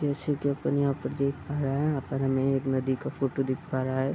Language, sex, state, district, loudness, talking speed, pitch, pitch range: Hindi, male, Bihar, Bhagalpur, -29 LUFS, 290 wpm, 135 Hz, 135-140 Hz